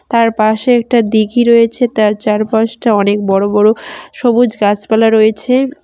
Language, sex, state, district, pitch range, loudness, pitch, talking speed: Bengali, female, West Bengal, Cooch Behar, 215-240 Hz, -12 LUFS, 220 Hz, 135 wpm